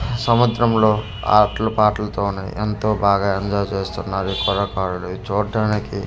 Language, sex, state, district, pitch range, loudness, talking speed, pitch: Telugu, male, Andhra Pradesh, Manyam, 100-110 Hz, -19 LUFS, 120 wpm, 105 Hz